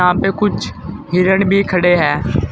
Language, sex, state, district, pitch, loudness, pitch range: Hindi, male, Uttar Pradesh, Saharanpur, 190 Hz, -15 LUFS, 180-195 Hz